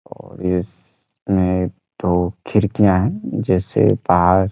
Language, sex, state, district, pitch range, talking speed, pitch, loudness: Hindi, male, Chhattisgarh, Bastar, 90-100 Hz, 105 wpm, 95 Hz, -18 LUFS